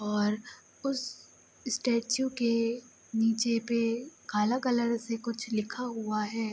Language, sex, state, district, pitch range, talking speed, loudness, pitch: Hindi, female, Bihar, Begusarai, 220-245 Hz, 120 wpm, -31 LUFS, 230 Hz